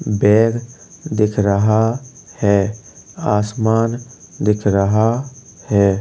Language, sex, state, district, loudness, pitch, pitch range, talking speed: Hindi, male, Uttar Pradesh, Jalaun, -17 LUFS, 105 Hz, 100-115 Hz, 80 wpm